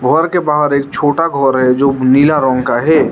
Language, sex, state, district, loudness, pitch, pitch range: Hindi, male, Arunachal Pradesh, Lower Dibang Valley, -12 LUFS, 140 Hz, 130-155 Hz